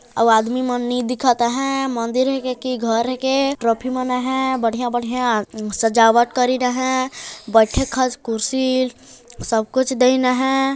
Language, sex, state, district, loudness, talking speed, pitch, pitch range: Hindi, female, Chhattisgarh, Jashpur, -19 LUFS, 155 wpm, 250 Hz, 235-260 Hz